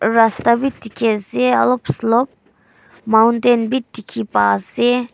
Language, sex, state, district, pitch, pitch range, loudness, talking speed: Nagamese, female, Nagaland, Kohima, 230 Hz, 220-245 Hz, -17 LUFS, 115 wpm